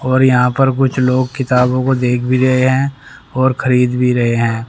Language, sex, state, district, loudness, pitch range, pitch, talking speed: Hindi, male, Haryana, Rohtak, -14 LUFS, 125-130 Hz, 130 Hz, 205 wpm